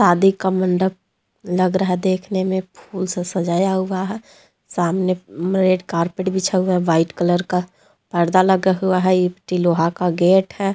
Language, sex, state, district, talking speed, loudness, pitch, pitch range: Hindi, female, Jharkhand, Deoghar, 165 wpm, -19 LUFS, 185 Hz, 180-190 Hz